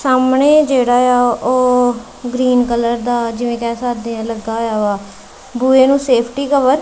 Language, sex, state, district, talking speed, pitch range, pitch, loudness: Punjabi, female, Punjab, Kapurthala, 165 wpm, 235-255 Hz, 245 Hz, -14 LUFS